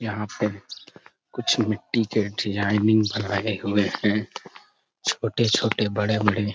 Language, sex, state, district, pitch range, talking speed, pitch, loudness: Hindi, male, Jharkhand, Sahebganj, 105-110 Hz, 110 wpm, 105 Hz, -24 LUFS